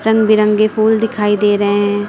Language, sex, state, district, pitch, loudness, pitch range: Hindi, female, Uttar Pradesh, Lucknow, 210 Hz, -13 LUFS, 205-220 Hz